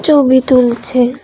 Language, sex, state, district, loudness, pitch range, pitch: Bengali, female, Tripura, West Tripura, -11 LUFS, 250-270 Hz, 255 Hz